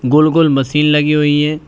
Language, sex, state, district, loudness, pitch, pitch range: Hindi, male, Uttar Pradesh, Shamli, -12 LUFS, 150 Hz, 145-150 Hz